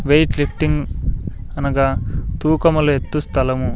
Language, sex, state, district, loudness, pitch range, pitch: Telugu, male, Andhra Pradesh, Sri Satya Sai, -19 LUFS, 110-150 Hz, 140 Hz